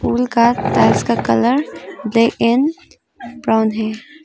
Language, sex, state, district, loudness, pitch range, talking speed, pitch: Hindi, female, Arunachal Pradesh, Longding, -16 LUFS, 215-250 Hz, 115 wpm, 230 Hz